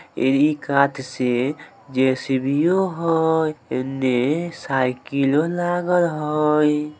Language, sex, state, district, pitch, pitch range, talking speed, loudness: Maithili, male, Bihar, Samastipur, 150 Hz, 130-160 Hz, 75 wpm, -20 LUFS